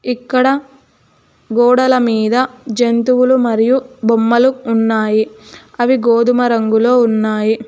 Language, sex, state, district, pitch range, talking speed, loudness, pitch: Telugu, female, Telangana, Hyderabad, 225-255 Hz, 85 wpm, -13 LUFS, 240 Hz